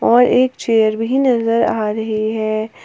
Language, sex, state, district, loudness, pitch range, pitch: Hindi, female, Jharkhand, Palamu, -16 LUFS, 215-240 Hz, 225 Hz